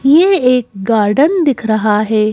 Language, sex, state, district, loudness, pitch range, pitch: Hindi, female, Madhya Pradesh, Bhopal, -12 LUFS, 215-285 Hz, 225 Hz